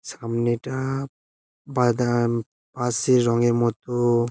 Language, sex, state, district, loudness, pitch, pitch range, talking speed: Bengali, male, West Bengal, Jhargram, -23 LUFS, 120 Hz, 115-125 Hz, 70 wpm